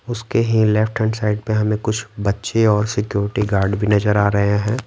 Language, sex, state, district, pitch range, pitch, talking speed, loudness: Hindi, male, Bihar, West Champaran, 105-110 Hz, 105 Hz, 210 wpm, -18 LUFS